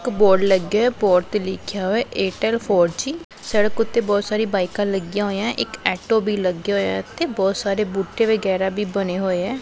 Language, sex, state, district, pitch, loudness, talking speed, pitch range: Punjabi, female, Punjab, Pathankot, 205 Hz, -20 LUFS, 220 wpm, 190-220 Hz